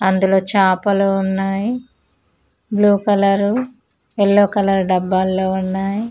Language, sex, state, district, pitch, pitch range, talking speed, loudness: Telugu, female, Telangana, Mahabubabad, 195 Hz, 190-205 Hz, 90 wpm, -16 LUFS